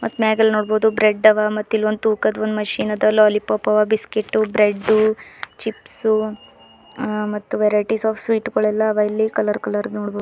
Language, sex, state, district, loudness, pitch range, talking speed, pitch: Kannada, female, Karnataka, Bidar, -19 LUFS, 210-220 Hz, 160 wpm, 215 Hz